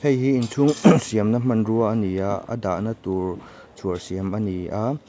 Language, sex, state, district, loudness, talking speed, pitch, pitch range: Mizo, male, Mizoram, Aizawl, -22 LUFS, 190 wpm, 110 Hz, 95-125 Hz